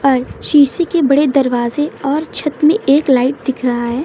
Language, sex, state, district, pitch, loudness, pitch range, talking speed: Hindi, female, Uttar Pradesh, Lucknow, 280 Hz, -14 LUFS, 255-300 Hz, 195 wpm